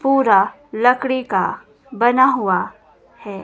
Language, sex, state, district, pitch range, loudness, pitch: Hindi, female, Himachal Pradesh, Shimla, 200-260 Hz, -17 LUFS, 245 Hz